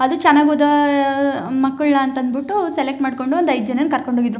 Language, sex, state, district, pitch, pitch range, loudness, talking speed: Kannada, female, Karnataka, Chamarajanagar, 275 Hz, 265-295 Hz, -17 LUFS, 175 wpm